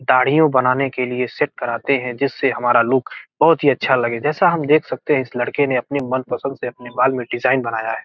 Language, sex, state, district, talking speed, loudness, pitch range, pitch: Hindi, male, Bihar, Gopalganj, 240 wpm, -18 LUFS, 125-140 Hz, 130 Hz